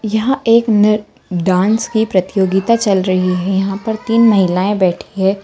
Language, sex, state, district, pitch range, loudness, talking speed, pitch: Kumaoni, female, Uttarakhand, Tehri Garhwal, 190-220 Hz, -14 LUFS, 155 wpm, 200 Hz